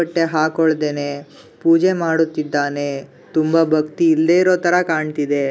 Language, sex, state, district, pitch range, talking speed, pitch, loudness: Kannada, male, Karnataka, Gulbarga, 145-165 Hz, 100 wpm, 160 Hz, -17 LUFS